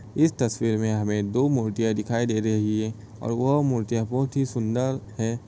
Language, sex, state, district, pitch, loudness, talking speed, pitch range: Hindi, male, Uttar Pradesh, Varanasi, 115 Hz, -25 LUFS, 185 wpm, 110-130 Hz